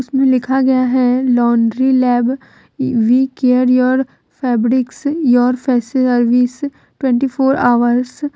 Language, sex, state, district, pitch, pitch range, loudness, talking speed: Hindi, female, Jharkhand, Deoghar, 255 Hz, 245-265 Hz, -14 LUFS, 115 wpm